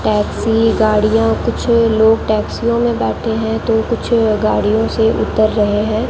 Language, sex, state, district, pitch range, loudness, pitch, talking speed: Hindi, female, Rajasthan, Bikaner, 215-225 Hz, -15 LUFS, 220 Hz, 145 wpm